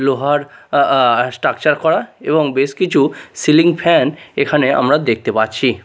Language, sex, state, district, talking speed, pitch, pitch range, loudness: Bengali, male, Odisha, Nuapada, 145 wpm, 145 Hz, 135-155 Hz, -15 LUFS